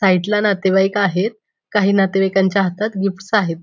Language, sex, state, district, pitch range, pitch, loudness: Marathi, female, Maharashtra, Pune, 190-210 Hz, 195 Hz, -17 LUFS